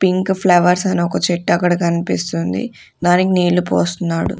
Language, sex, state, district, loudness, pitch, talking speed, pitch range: Telugu, female, Andhra Pradesh, Sri Satya Sai, -16 LUFS, 180 Hz, 135 wpm, 175-185 Hz